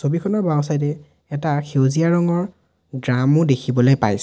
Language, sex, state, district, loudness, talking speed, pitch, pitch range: Assamese, male, Assam, Sonitpur, -19 LUFS, 115 wpm, 150 Hz, 135-165 Hz